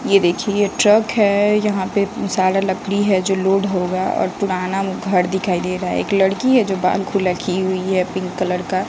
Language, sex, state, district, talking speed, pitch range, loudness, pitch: Hindi, female, Bihar, West Champaran, 210 wpm, 185-200 Hz, -18 LUFS, 190 Hz